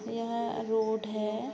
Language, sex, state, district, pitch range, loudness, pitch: Hindi, female, Uttar Pradesh, Jalaun, 215-230 Hz, -32 LUFS, 220 Hz